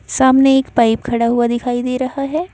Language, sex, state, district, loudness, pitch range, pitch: Hindi, female, Haryana, Jhajjar, -15 LUFS, 240-270 Hz, 255 Hz